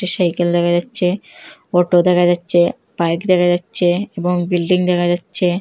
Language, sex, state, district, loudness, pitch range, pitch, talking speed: Bengali, female, Assam, Hailakandi, -16 LUFS, 175-180 Hz, 175 Hz, 140 wpm